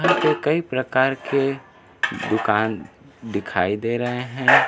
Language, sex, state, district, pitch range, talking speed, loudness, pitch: Hindi, male, Bihar, Kaimur, 110-135 Hz, 130 wpm, -22 LUFS, 130 Hz